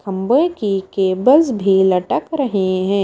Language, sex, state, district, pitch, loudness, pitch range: Hindi, female, Himachal Pradesh, Shimla, 195 Hz, -16 LUFS, 190-260 Hz